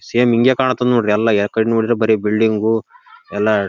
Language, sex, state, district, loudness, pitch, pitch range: Kannada, male, Karnataka, Raichur, -16 LUFS, 115 Hz, 110-125 Hz